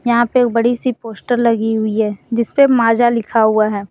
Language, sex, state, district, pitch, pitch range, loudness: Hindi, female, Jharkhand, Deoghar, 230 Hz, 220-240 Hz, -15 LUFS